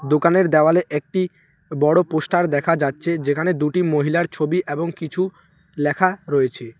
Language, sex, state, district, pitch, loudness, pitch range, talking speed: Bengali, male, West Bengal, Alipurduar, 160 Hz, -20 LUFS, 150-175 Hz, 130 wpm